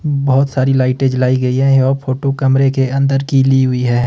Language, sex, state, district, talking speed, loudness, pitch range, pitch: Hindi, male, Himachal Pradesh, Shimla, 220 wpm, -14 LUFS, 130-135 Hz, 135 Hz